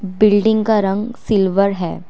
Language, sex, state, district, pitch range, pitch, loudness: Hindi, female, Assam, Kamrup Metropolitan, 195-215 Hz, 205 Hz, -16 LUFS